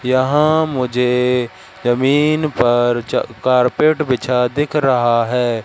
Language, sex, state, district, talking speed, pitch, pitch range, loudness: Hindi, male, Madhya Pradesh, Katni, 105 wpm, 125 Hz, 120-145 Hz, -16 LUFS